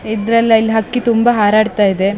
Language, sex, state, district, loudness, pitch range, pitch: Kannada, female, Karnataka, Shimoga, -13 LUFS, 210-230 Hz, 220 Hz